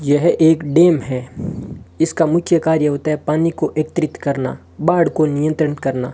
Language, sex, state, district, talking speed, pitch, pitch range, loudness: Hindi, male, Rajasthan, Bikaner, 165 wpm, 155 Hz, 145-160 Hz, -17 LUFS